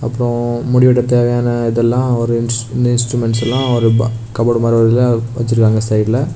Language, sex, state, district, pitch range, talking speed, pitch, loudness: Tamil, male, Tamil Nadu, Kanyakumari, 115-120 Hz, 140 wpm, 120 Hz, -14 LUFS